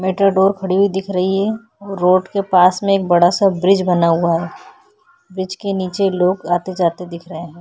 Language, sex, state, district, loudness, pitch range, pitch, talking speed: Hindi, female, Chhattisgarh, Korba, -16 LUFS, 180-195 Hz, 190 Hz, 195 wpm